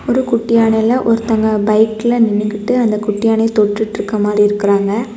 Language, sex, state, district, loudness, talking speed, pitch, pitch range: Tamil, female, Tamil Nadu, Kanyakumari, -14 LUFS, 140 wpm, 220 Hz, 210-230 Hz